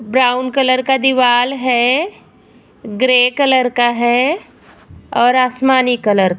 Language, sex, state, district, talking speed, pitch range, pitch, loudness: Hindi, female, Bihar, Vaishali, 120 wpm, 240-265 Hz, 255 Hz, -13 LUFS